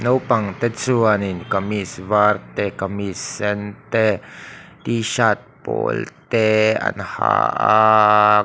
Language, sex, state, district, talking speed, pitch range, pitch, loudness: Mizo, male, Mizoram, Aizawl, 100 wpm, 105-115 Hz, 105 Hz, -19 LUFS